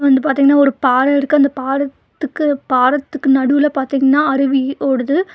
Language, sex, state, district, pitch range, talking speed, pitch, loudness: Tamil, female, Tamil Nadu, Nilgiris, 270-285 Hz, 135 wpm, 275 Hz, -14 LUFS